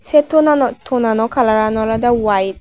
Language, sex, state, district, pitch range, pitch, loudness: Chakma, female, Tripura, Unakoti, 220-265 Hz, 230 Hz, -15 LUFS